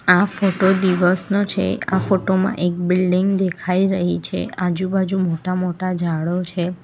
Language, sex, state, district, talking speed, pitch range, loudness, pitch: Gujarati, female, Gujarat, Valsad, 150 wpm, 180-190 Hz, -19 LUFS, 185 Hz